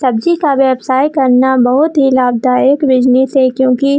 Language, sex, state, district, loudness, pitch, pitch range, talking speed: Hindi, female, Jharkhand, Jamtara, -11 LUFS, 260 Hz, 255-275 Hz, 165 wpm